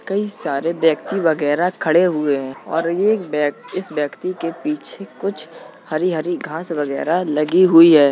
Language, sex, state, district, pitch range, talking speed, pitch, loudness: Hindi, male, Uttar Pradesh, Jalaun, 150-185 Hz, 160 wpm, 165 Hz, -18 LUFS